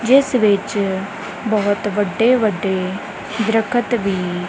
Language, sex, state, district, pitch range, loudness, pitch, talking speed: Punjabi, female, Punjab, Kapurthala, 195-225 Hz, -18 LUFS, 205 Hz, 95 wpm